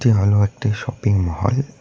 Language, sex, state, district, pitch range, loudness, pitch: Bengali, male, West Bengal, Cooch Behar, 100-125 Hz, -19 LUFS, 105 Hz